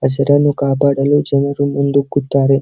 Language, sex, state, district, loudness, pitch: Kannada, male, Karnataka, Belgaum, -15 LUFS, 140 Hz